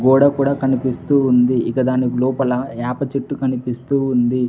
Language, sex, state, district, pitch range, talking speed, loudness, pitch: Telugu, male, Telangana, Mahabubabad, 125-135 Hz, 145 wpm, -18 LUFS, 130 Hz